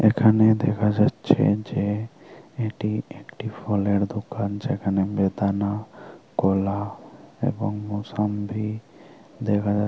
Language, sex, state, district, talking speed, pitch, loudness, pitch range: Bengali, male, Tripura, Unakoti, 90 wpm, 105 Hz, -24 LUFS, 100-110 Hz